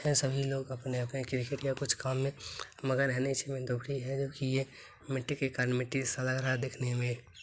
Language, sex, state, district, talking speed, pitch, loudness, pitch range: Maithili, male, Bihar, Begusarai, 210 wpm, 130 Hz, -34 LUFS, 125-135 Hz